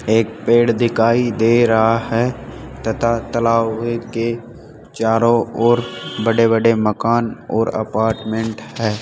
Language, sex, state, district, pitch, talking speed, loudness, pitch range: Hindi, male, Rajasthan, Jaipur, 115 Hz, 105 wpm, -17 LUFS, 110-115 Hz